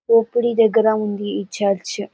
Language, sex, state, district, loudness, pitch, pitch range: Telugu, female, Karnataka, Bellary, -19 LUFS, 220 Hz, 205-230 Hz